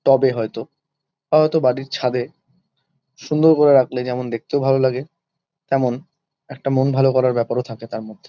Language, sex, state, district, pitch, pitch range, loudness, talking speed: Bengali, male, West Bengal, Kolkata, 135 Hz, 125-155 Hz, -19 LUFS, 160 wpm